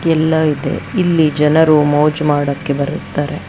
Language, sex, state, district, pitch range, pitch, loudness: Kannada, female, Karnataka, Bangalore, 145-160 Hz, 150 Hz, -14 LUFS